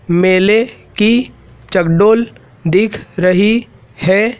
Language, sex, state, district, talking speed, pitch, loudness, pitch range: Hindi, male, Madhya Pradesh, Dhar, 80 wpm, 190 Hz, -13 LUFS, 175-220 Hz